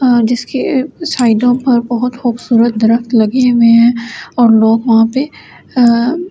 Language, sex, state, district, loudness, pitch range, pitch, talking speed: Hindi, female, Delhi, New Delhi, -11 LUFS, 230-255 Hz, 240 Hz, 150 wpm